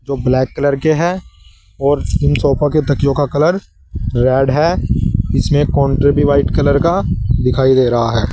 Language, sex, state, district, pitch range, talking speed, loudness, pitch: Hindi, male, Uttar Pradesh, Saharanpur, 120-145 Hz, 175 wpm, -14 LUFS, 140 Hz